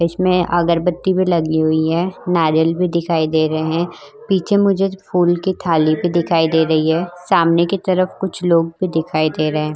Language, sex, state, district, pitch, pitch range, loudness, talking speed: Hindi, female, Maharashtra, Chandrapur, 170 Hz, 160-185 Hz, -17 LUFS, 195 wpm